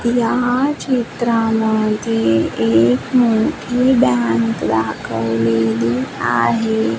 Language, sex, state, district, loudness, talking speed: Marathi, female, Maharashtra, Washim, -16 LUFS, 60 wpm